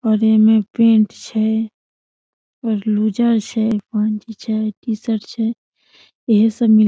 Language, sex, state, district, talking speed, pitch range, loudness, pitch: Maithili, female, Bihar, Samastipur, 130 wpm, 215-225 Hz, -17 LUFS, 220 Hz